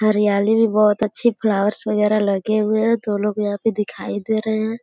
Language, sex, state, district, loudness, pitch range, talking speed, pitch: Hindi, female, Uttar Pradesh, Gorakhpur, -19 LUFS, 210-220 Hz, 210 wpm, 215 Hz